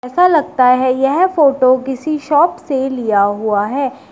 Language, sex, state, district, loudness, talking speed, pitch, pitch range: Hindi, female, Uttar Pradesh, Shamli, -14 LUFS, 160 wpm, 265 Hz, 250-290 Hz